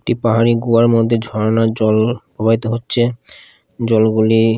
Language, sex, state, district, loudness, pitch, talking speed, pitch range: Bengali, male, Odisha, Khordha, -15 LUFS, 115 Hz, 120 wpm, 110-115 Hz